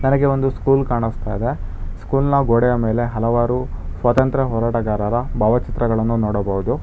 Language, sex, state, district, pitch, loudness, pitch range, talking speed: Kannada, male, Karnataka, Bangalore, 120 Hz, -19 LUFS, 110-130 Hz, 105 wpm